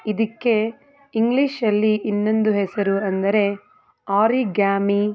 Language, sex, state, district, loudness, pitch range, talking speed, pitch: Kannada, female, Karnataka, Mysore, -20 LUFS, 200-230 Hz, 70 wpm, 215 Hz